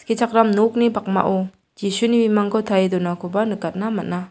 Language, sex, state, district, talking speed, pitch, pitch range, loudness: Garo, female, Meghalaya, South Garo Hills, 110 wpm, 205 Hz, 190-225 Hz, -19 LUFS